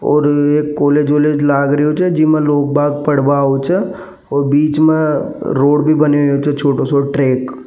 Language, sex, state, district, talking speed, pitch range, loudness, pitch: Marwari, male, Rajasthan, Nagaur, 195 wpm, 140-150 Hz, -13 LUFS, 145 Hz